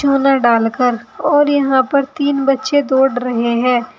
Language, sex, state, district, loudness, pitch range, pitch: Hindi, female, Uttar Pradesh, Saharanpur, -14 LUFS, 245-280 Hz, 265 Hz